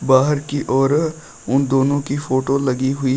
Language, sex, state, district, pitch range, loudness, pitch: Hindi, male, Uttar Pradesh, Shamli, 130-145 Hz, -18 LUFS, 135 Hz